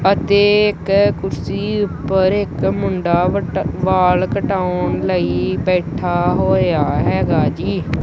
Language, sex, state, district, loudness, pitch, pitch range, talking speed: Punjabi, male, Punjab, Kapurthala, -17 LUFS, 190 Hz, 180-200 Hz, 110 wpm